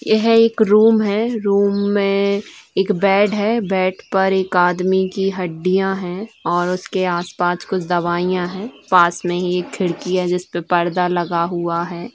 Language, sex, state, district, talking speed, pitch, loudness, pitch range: Hindi, female, Bihar, Saran, 165 wpm, 185 Hz, -18 LUFS, 175-200 Hz